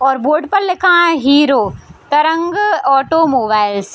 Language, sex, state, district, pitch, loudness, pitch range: Hindi, female, Bihar, Sitamarhi, 300 Hz, -13 LUFS, 270-345 Hz